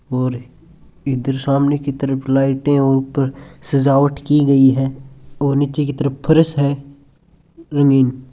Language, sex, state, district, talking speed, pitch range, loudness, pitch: Hindi, male, Rajasthan, Churu, 135 wpm, 135-145 Hz, -16 LUFS, 140 Hz